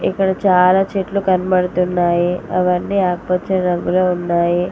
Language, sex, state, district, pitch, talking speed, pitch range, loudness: Telugu, female, Telangana, Mahabubabad, 180 Hz, 115 wpm, 180-190 Hz, -16 LUFS